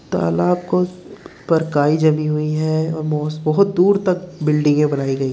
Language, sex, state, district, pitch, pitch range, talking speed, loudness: Hindi, male, Uttar Pradesh, Muzaffarnagar, 155 Hz, 150-180 Hz, 135 wpm, -18 LUFS